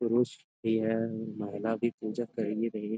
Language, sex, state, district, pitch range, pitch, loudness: Hindi, male, Bihar, Jamui, 110-115 Hz, 110 Hz, -32 LUFS